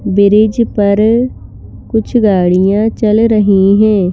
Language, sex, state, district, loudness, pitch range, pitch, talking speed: Hindi, female, Madhya Pradesh, Bhopal, -11 LUFS, 200-220 Hz, 210 Hz, 100 wpm